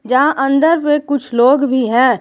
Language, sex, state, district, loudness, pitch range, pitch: Hindi, female, Jharkhand, Palamu, -13 LUFS, 255-290 Hz, 270 Hz